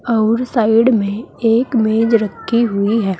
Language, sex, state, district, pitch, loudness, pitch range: Hindi, female, Uttar Pradesh, Saharanpur, 225 Hz, -15 LUFS, 215-235 Hz